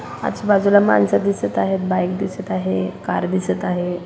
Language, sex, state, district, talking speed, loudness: Marathi, female, Maharashtra, Solapur, 150 wpm, -19 LUFS